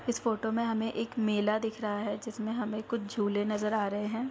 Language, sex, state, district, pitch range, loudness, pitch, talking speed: Hindi, female, Bihar, Darbhanga, 210-225 Hz, -32 LUFS, 220 Hz, 235 wpm